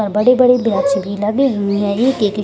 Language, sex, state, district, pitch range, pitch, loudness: Hindi, female, Bihar, Gaya, 200-250 Hz, 210 Hz, -15 LUFS